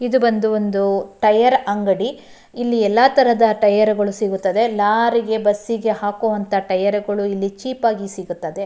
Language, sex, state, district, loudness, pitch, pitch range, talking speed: Kannada, female, Karnataka, Shimoga, -18 LUFS, 210 Hz, 200-230 Hz, 145 wpm